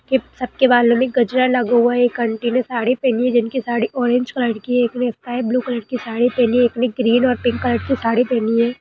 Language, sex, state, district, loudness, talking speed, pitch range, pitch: Hindi, female, Bihar, Purnia, -18 LUFS, 250 wpm, 235-250 Hz, 245 Hz